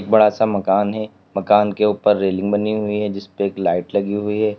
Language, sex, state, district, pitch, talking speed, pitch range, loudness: Hindi, male, Uttar Pradesh, Lalitpur, 105 Hz, 220 wpm, 100-105 Hz, -19 LUFS